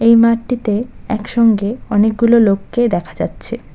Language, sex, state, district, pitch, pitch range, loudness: Bengali, female, West Bengal, Cooch Behar, 225 Hz, 210-235 Hz, -15 LUFS